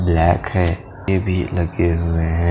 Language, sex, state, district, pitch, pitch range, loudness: Hindi, male, Punjab, Fazilka, 85 Hz, 85-90 Hz, -19 LUFS